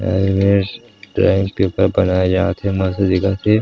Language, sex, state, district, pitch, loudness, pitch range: Chhattisgarhi, male, Chhattisgarh, Sarguja, 95 Hz, -17 LUFS, 95-100 Hz